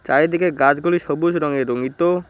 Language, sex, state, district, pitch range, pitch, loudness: Bengali, male, West Bengal, Cooch Behar, 140-175 Hz, 165 Hz, -19 LUFS